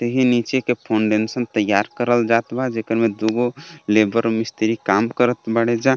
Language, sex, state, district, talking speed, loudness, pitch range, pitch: Bhojpuri, male, Jharkhand, Palamu, 180 wpm, -19 LUFS, 110-125 Hz, 115 Hz